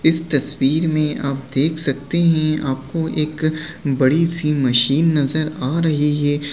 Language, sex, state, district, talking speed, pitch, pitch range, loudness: Hindi, male, Bihar, Gaya, 140 wpm, 150 Hz, 140-160 Hz, -18 LUFS